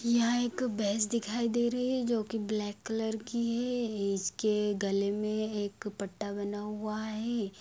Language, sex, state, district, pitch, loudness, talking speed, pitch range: Hindi, female, Bihar, Sitamarhi, 215 Hz, -32 LUFS, 165 wpm, 205-235 Hz